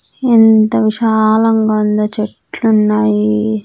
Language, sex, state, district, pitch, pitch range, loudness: Telugu, female, Andhra Pradesh, Sri Satya Sai, 215 Hz, 210-225 Hz, -12 LUFS